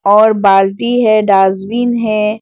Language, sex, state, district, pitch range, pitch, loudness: Hindi, female, Arunachal Pradesh, Lower Dibang Valley, 195-230 Hz, 215 Hz, -11 LUFS